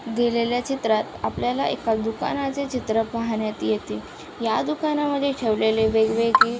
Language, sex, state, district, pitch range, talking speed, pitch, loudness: Marathi, female, Maharashtra, Aurangabad, 220-255 Hz, 110 wpm, 230 Hz, -23 LUFS